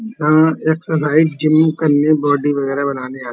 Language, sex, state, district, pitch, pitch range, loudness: Hindi, male, Uttar Pradesh, Muzaffarnagar, 155 Hz, 145-160 Hz, -15 LUFS